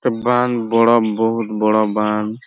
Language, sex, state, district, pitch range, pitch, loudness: Bengali, male, West Bengal, Purulia, 110-120 Hz, 115 Hz, -17 LUFS